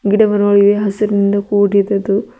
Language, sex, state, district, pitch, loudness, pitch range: Kannada, female, Karnataka, Bidar, 205 Hz, -13 LUFS, 200-205 Hz